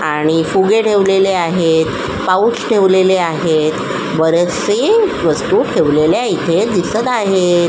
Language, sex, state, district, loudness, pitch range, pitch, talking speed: Marathi, female, Maharashtra, Solapur, -13 LUFS, 160-195 Hz, 175 Hz, 100 wpm